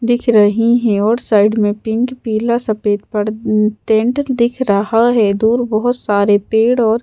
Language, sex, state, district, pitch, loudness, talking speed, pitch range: Hindi, female, Madhya Pradesh, Bhopal, 220 Hz, -14 LUFS, 160 wpm, 210-235 Hz